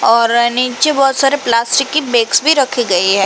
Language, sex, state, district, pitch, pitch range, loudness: Hindi, female, Uttar Pradesh, Jalaun, 250 Hz, 230-275 Hz, -12 LUFS